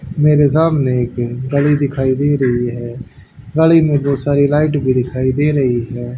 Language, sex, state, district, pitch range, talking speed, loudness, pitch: Hindi, male, Haryana, Charkhi Dadri, 125-145 Hz, 175 wpm, -15 LUFS, 135 Hz